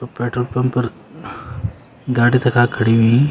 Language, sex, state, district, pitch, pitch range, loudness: Garhwali, male, Uttarakhand, Uttarkashi, 125 Hz, 115-125 Hz, -17 LUFS